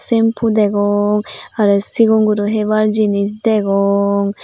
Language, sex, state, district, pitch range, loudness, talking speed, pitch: Chakma, female, Tripura, Unakoti, 200-220 Hz, -15 LUFS, 110 wpm, 210 Hz